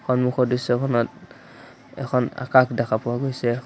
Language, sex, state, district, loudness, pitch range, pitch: Assamese, male, Assam, Sonitpur, -22 LUFS, 120-130 Hz, 125 Hz